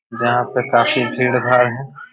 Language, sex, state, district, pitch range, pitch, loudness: Hindi, male, Chhattisgarh, Raigarh, 120-125 Hz, 125 Hz, -16 LUFS